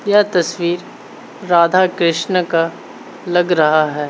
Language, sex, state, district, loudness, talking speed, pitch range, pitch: Hindi, male, Bihar, Saharsa, -15 LUFS, 115 wpm, 165-185 Hz, 175 Hz